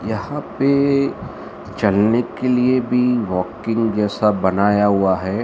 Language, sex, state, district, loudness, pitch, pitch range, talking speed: Hindi, male, Maharashtra, Mumbai Suburban, -18 LUFS, 110 Hz, 100-125 Hz, 120 wpm